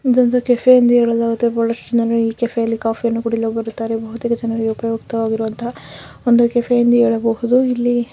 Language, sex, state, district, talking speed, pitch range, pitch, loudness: Kannada, female, Karnataka, Dakshina Kannada, 105 wpm, 230-240 Hz, 235 Hz, -17 LUFS